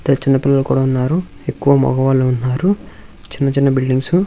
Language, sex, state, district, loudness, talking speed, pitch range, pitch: Telugu, male, Andhra Pradesh, Visakhapatnam, -16 LUFS, 155 wpm, 130-140 Hz, 135 Hz